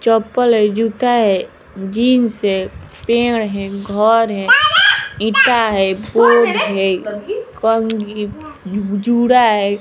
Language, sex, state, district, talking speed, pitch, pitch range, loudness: Hindi, female, Bihar, West Champaran, 105 wpm, 220 Hz, 205-235 Hz, -14 LUFS